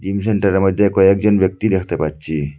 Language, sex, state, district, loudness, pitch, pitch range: Bengali, male, Assam, Hailakandi, -16 LUFS, 95 Hz, 95-100 Hz